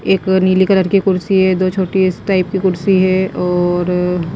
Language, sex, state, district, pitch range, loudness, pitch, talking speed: Hindi, female, Himachal Pradesh, Shimla, 180-190 Hz, -14 LUFS, 185 Hz, 205 wpm